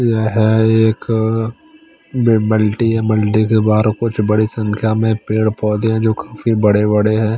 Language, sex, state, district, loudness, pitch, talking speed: Hindi, male, Chandigarh, Chandigarh, -15 LUFS, 110 Hz, 165 wpm